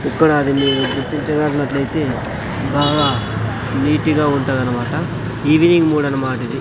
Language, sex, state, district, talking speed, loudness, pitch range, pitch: Telugu, male, Andhra Pradesh, Sri Satya Sai, 90 wpm, -17 LUFS, 130-150 Hz, 140 Hz